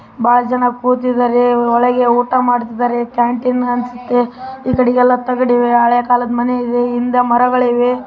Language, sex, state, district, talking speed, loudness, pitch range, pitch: Kannada, female, Karnataka, Raichur, 140 wpm, -14 LUFS, 245-250 Hz, 245 Hz